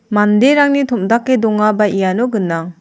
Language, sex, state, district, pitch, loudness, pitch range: Garo, female, Meghalaya, South Garo Hills, 215 Hz, -14 LUFS, 205-245 Hz